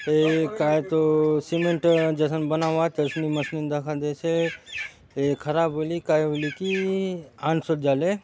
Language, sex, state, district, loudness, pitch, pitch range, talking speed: Halbi, male, Chhattisgarh, Bastar, -24 LUFS, 155 Hz, 150-165 Hz, 170 wpm